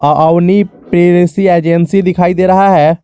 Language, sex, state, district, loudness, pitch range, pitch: Hindi, male, Jharkhand, Garhwa, -9 LUFS, 170-190 Hz, 175 Hz